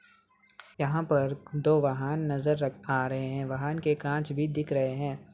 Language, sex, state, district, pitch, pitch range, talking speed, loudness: Hindi, male, Bihar, Saran, 145 Hz, 135-155 Hz, 155 wpm, -29 LUFS